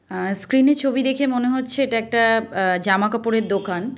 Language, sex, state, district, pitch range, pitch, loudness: Bengali, female, West Bengal, Kolkata, 195-260 Hz, 230 Hz, -20 LUFS